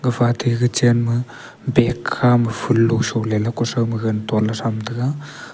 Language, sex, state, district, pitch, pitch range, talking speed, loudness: Wancho, male, Arunachal Pradesh, Longding, 120 Hz, 115-120 Hz, 165 wpm, -19 LUFS